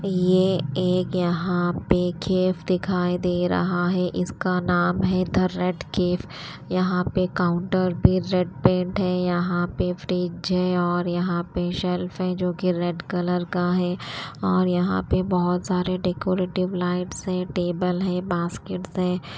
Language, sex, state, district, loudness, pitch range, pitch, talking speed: Hindi, female, Haryana, Rohtak, -24 LUFS, 175-185 Hz, 180 Hz, 150 wpm